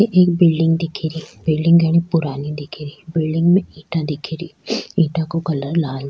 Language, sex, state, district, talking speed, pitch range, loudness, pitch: Rajasthani, female, Rajasthan, Churu, 195 wpm, 155-170 Hz, -18 LUFS, 160 Hz